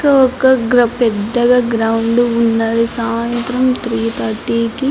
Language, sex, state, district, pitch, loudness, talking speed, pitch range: Telugu, female, Andhra Pradesh, Anantapur, 235 Hz, -14 LUFS, 110 wpm, 230-250 Hz